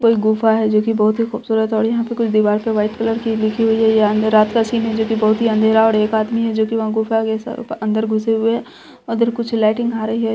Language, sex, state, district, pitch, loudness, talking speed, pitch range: Hindi, female, Bihar, Araria, 220 Hz, -17 LUFS, 305 wpm, 220-230 Hz